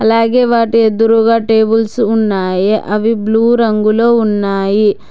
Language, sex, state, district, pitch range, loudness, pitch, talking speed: Telugu, female, Telangana, Hyderabad, 210-230 Hz, -12 LUFS, 225 Hz, 105 wpm